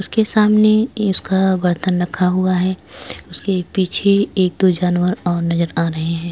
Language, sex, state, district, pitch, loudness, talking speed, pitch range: Hindi, female, Goa, North and South Goa, 185 Hz, -17 LUFS, 160 wpm, 175-195 Hz